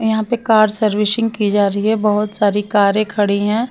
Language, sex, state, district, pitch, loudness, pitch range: Hindi, female, Bihar, West Champaran, 210 Hz, -16 LUFS, 205-220 Hz